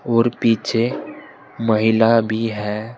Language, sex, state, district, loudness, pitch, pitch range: Hindi, male, Uttar Pradesh, Saharanpur, -18 LUFS, 115 Hz, 110-115 Hz